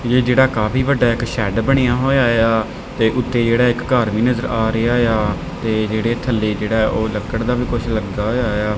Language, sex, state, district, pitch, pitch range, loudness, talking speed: Punjabi, male, Punjab, Kapurthala, 115 Hz, 110-125 Hz, -17 LUFS, 210 wpm